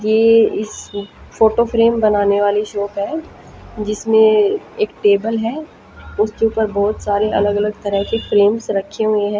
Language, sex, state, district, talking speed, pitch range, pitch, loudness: Hindi, female, Haryana, Jhajjar, 155 wpm, 205-225 Hz, 215 Hz, -16 LUFS